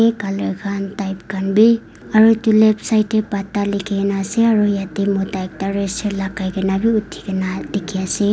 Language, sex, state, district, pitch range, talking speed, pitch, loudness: Nagamese, female, Nagaland, Dimapur, 195-215 Hz, 200 wpm, 200 Hz, -18 LUFS